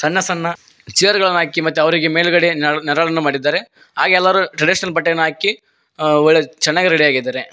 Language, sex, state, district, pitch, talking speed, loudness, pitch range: Kannada, male, Karnataka, Koppal, 165 Hz, 160 wpm, -15 LUFS, 150-180 Hz